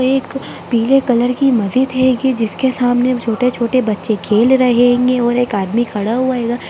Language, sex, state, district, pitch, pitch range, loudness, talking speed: Hindi, female, Bihar, Darbhanga, 245 Hz, 235-255 Hz, -14 LUFS, 150 wpm